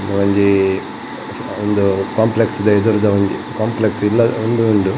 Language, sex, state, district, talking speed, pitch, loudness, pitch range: Tulu, male, Karnataka, Dakshina Kannada, 120 wpm, 105 Hz, -16 LUFS, 100-110 Hz